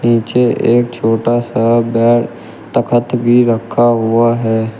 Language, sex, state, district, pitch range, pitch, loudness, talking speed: Hindi, male, Uttar Pradesh, Shamli, 115-120 Hz, 120 Hz, -13 LUFS, 125 wpm